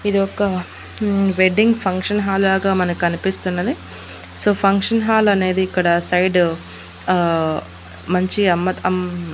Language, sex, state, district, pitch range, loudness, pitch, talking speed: Telugu, female, Andhra Pradesh, Annamaya, 175-195 Hz, -18 LUFS, 185 Hz, 110 wpm